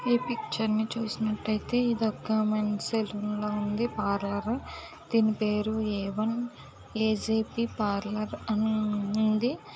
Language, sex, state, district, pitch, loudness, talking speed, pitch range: Telugu, female, Andhra Pradesh, Visakhapatnam, 215 Hz, -29 LUFS, 85 wpm, 210-225 Hz